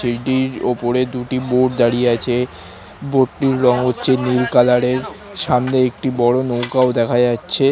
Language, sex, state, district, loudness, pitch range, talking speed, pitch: Bengali, male, West Bengal, North 24 Parganas, -17 LUFS, 120-130 Hz, 145 wpm, 125 Hz